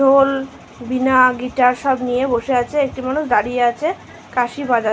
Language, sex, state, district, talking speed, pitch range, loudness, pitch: Bengali, female, West Bengal, Malda, 160 wpm, 245-270 Hz, -17 LUFS, 255 Hz